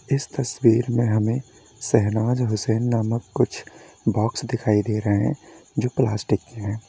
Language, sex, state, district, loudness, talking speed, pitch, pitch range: Hindi, male, Uttar Pradesh, Lalitpur, -23 LUFS, 150 wpm, 115 Hz, 110-120 Hz